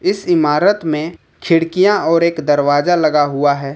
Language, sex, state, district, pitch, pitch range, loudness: Hindi, male, Jharkhand, Ranchi, 160 Hz, 145-175 Hz, -14 LUFS